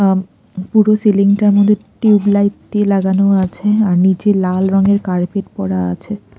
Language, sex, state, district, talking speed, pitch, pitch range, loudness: Bengali, female, Odisha, Khordha, 150 wpm, 200 Hz, 190-205 Hz, -14 LUFS